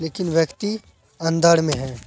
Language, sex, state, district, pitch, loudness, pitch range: Hindi, male, Bihar, Araria, 165 Hz, -20 LUFS, 140-170 Hz